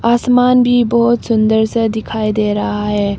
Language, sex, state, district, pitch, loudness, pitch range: Hindi, female, Arunachal Pradesh, Papum Pare, 220 Hz, -14 LUFS, 215-235 Hz